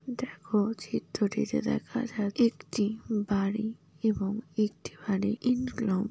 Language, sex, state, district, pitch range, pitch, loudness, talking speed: Bengali, female, West Bengal, Paschim Medinipur, 195-225 Hz, 210 Hz, -30 LUFS, 110 wpm